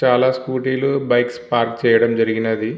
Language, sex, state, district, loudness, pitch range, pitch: Telugu, male, Andhra Pradesh, Visakhapatnam, -18 LUFS, 115-130 Hz, 120 Hz